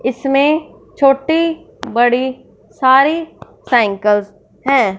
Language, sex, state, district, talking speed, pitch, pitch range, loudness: Hindi, female, Punjab, Fazilka, 70 wpm, 260 Hz, 225-290 Hz, -15 LUFS